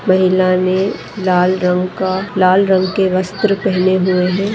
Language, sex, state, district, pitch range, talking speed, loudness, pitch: Hindi, female, Rajasthan, Nagaur, 185-195 Hz, 160 wpm, -14 LUFS, 185 Hz